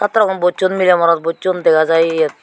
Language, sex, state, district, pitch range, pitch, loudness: Chakma, female, Tripura, Unakoti, 165-185 Hz, 175 Hz, -14 LUFS